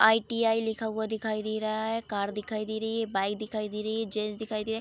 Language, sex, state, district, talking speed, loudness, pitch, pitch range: Hindi, female, Bihar, Darbhanga, 260 wpm, -30 LUFS, 220 Hz, 215-220 Hz